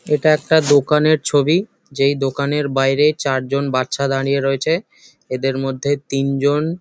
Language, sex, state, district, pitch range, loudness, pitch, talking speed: Bengali, male, West Bengal, Jhargram, 135-150 Hz, -17 LUFS, 140 Hz, 125 wpm